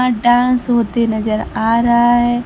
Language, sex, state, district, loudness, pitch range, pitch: Hindi, female, Bihar, Kaimur, -14 LUFS, 230-240 Hz, 240 Hz